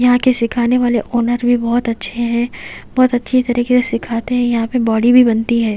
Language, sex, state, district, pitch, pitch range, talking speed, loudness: Hindi, female, Haryana, Jhajjar, 240 Hz, 230-245 Hz, 220 wpm, -15 LUFS